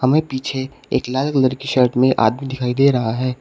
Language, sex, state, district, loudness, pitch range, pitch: Hindi, male, Uttar Pradesh, Shamli, -18 LUFS, 125-135 Hz, 130 Hz